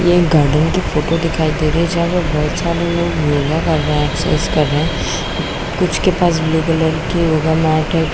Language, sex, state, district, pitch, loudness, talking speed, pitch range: Hindi, female, Bihar, Kishanganj, 160 Hz, -16 LUFS, 220 wpm, 155-170 Hz